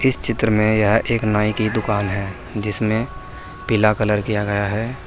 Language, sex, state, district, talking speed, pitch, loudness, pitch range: Hindi, male, Uttar Pradesh, Saharanpur, 180 wpm, 105 Hz, -19 LUFS, 105-110 Hz